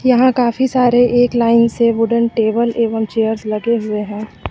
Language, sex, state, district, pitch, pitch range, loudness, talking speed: Hindi, female, Uttar Pradesh, Lucknow, 235 Hz, 220-245 Hz, -15 LUFS, 175 wpm